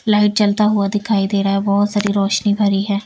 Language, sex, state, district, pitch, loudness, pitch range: Hindi, female, Bihar, Patna, 205 Hz, -16 LUFS, 200-210 Hz